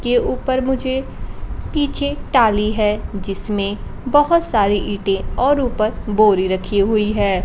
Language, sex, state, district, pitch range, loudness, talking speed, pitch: Hindi, female, Bihar, Kaimur, 205-260 Hz, -18 LUFS, 130 wpm, 215 Hz